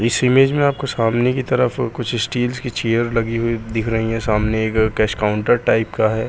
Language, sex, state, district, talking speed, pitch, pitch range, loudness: Hindi, male, Bihar, Jahanabad, 220 wpm, 115 Hz, 110-125 Hz, -18 LUFS